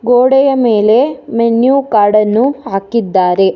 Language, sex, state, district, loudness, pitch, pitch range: Kannada, female, Karnataka, Bangalore, -11 LUFS, 230 Hz, 210-260 Hz